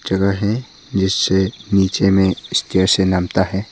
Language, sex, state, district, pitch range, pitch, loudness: Hindi, male, Arunachal Pradesh, Papum Pare, 95-100 Hz, 95 Hz, -17 LUFS